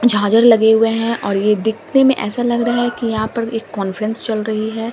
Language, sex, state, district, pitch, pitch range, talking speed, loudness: Hindi, female, Delhi, New Delhi, 225 Hz, 215-235 Hz, 245 wpm, -16 LUFS